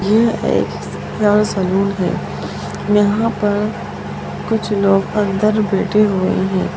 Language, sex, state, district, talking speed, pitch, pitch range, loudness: Hindi, female, Bihar, Sitamarhi, 115 wpm, 205 Hz, 195-210 Hz, -17 LUFS